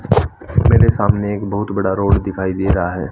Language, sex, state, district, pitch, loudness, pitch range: Hindi, male, Haryana, Rohtak, 100 Hz, -16 LUFS, 95-105 Hz